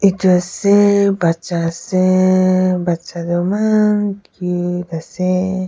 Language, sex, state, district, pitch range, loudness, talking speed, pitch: Nagamese, female, Nagaland, Kohima, 175-200 Hz, -16 LUFS, 95 wpm, 185 Hz